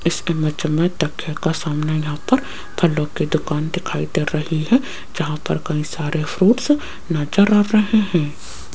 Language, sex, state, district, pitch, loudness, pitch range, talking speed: Hindi, female, Rajasthan, Jaipur, 160 Hz, -19 LUFS, 150-185 Hz, 165 wpm